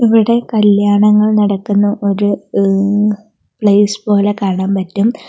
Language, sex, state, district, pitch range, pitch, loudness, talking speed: Malayalam, female, Kerala, Kollam, 200-215 Hz, 205 Hz, -13 LUFS, 100 wpm